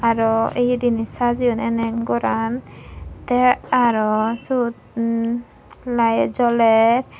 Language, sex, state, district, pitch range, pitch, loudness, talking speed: Chakma, female, Tripura, Dhalai, 225-245 Hz, 235 Hz, -19 LUFS, 100 wpm